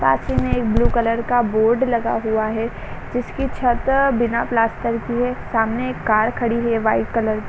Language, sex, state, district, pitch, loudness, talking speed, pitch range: Hindi, female, Chhattisgarh, Raigarh, 230 Hz, -20 LUFS, 210 wpm, 220-245 Hz